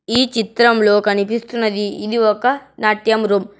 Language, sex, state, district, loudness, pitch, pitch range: Telugu, male, Telangana, Hyderabad, -16 LUFS, 220 Hz, 205-235 Hz